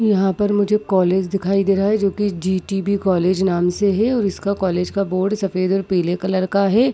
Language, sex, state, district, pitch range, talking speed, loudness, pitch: Hindi, female, Chhattisgarh, Bilaspur, 185-200 Hz, 225 wpm, -19 LUFS, 195 Hz